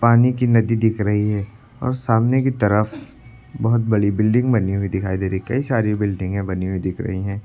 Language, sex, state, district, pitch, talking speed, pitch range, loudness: Hindi, male, Uttar Pradesh, Lucknow, 110 Hz, 215 wpm, 100-120 Hz, -20 LUFS